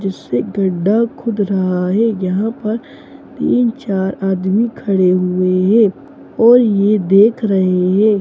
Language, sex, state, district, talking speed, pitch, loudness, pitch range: Hindi, female, Bihar, East Champaran, 125 wpm, 200 Hz, -15 LUFS, 185-225 Hz